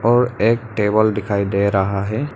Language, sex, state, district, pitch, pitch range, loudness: Hindi, male, Arunachal Pradesh, Lower Dibang Valley, 105 Hz, 100-115 Hz, -18 LUFS